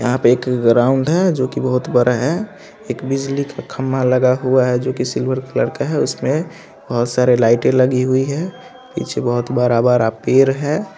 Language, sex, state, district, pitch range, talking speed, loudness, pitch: Hindi, male, Bihar, Saharsa, 125-140 Hz, 210 wpm, -17 LUFS, 130 Hz